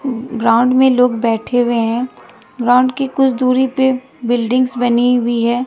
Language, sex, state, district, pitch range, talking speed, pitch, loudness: Hindi, female, Bihar, West Champaran, 240-255 Hz, 160 wpm, 250 Hz, -15 LUFS